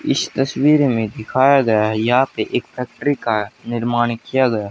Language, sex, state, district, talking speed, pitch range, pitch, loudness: Hindi, male, Haryana, Jhajjar, 180 wpm, 110-135 Hz, 120 Hz, -18 LUFS